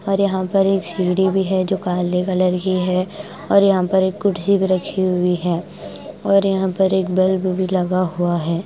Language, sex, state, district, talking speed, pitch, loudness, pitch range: Hindi, female, Bihar, West Champaran, 210 wpm, 185 Hz, -18 LUFS, 180-190 Hz